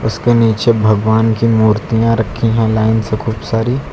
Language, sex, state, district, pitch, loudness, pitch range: Hindi, male, Uttar Pradesh, Lucknow, 110 Hz, -13 LUFS, 110-115 Hz